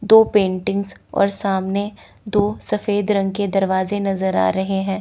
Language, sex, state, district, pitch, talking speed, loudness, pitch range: Hindi, female, Chandigarh, Chandigarh, 200 Hz, 155 wpm, -19 LUFS, 190-205 Hz